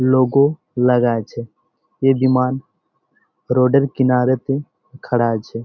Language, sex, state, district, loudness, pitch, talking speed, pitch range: Bengali, male, West Bengal, Malda, -17 LUFS, 130 Hz, 115 wpm, 120-135 Hz